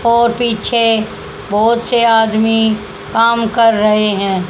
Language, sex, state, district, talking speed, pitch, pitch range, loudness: Hindi, female, Haryana, Charkhi Dadri, 120 wpm, 225 Hz, 215-230 Hz, -13 LUFS